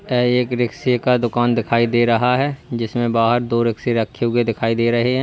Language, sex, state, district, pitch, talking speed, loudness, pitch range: Hindi, male, Uttar Pradesh, Lalitpur, 120 Hz, 220 wpm, -18 LUFS, 115-125 Hz